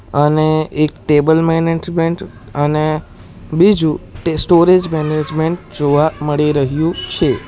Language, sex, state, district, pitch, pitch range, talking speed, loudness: Gujarati, male, Gujarat, Valsad, 155 Hz, 150-165 Hz, 105 wpm, -15 LUFS